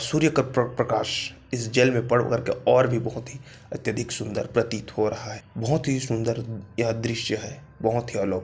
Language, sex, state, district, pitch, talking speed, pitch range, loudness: Hindi, male, Chhattisgarh, Korba, 115 Hz, 190 wpm, 110-125 Hz, -25 LUFS